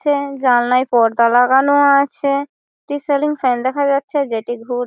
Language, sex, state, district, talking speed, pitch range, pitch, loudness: Bengali, female, West Bengal, Malda, 150 wpm, 245-285 Hz, 275 Hz, -16 LUFS